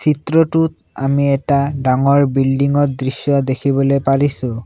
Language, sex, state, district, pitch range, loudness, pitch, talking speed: Assamese, male, Assam, Sonitpur, 135-145 Hz, -16 LUFS, 140 Hz, 115 wpm